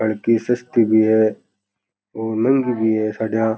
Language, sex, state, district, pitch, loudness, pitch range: Rajasthani, male, Rajasthan, Churu, 110 Hz, -18 LUFS, 110-115 Hz